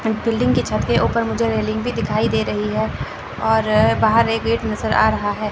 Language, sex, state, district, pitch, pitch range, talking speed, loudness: Hindi, male, Chandigarh, Chandigarh, 220 Hz, 210-230 Hz, 215 wpm, -19 LUFS